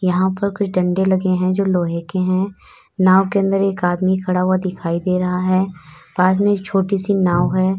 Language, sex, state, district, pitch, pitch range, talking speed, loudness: Hindi, female, Uttar Pradesh, Lalitpur, 185 Hz, 180-195 Hz, 215 wpm, -18 LUFS